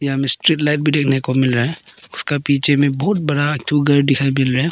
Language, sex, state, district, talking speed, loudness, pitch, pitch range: Hindi, male, Arunachal Pradesh, Papum Pare, 280 wpm, -16 LUFS, 145 Hz, 135-150 Hz